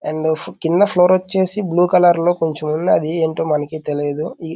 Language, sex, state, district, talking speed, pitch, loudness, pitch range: Telugu, male, Andhra Pradesh, Guntur, 185 wpm, 165 Hz, -17 LUFS, 155-180 Hz